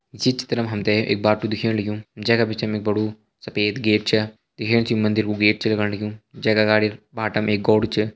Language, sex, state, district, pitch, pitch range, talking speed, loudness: Hindi, male, Uttarakhand, Uttarkashi, 110 Hz, 105-110 Hz, 255 wpm, -21 LUFS